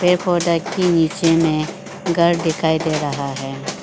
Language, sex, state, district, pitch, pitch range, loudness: Hindi, female, Arunachal Pradesh, Lower Dibang Valley, 165 Hz, 155-175 Hz, -18 LUFS